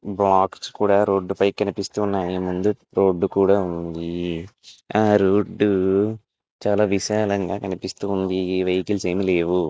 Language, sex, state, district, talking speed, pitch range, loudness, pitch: Telugu, male, Andhra Pradesh, Visakhapatnam, 95 wpm, 95-100 Hz, -21 LUFS, 95 Hz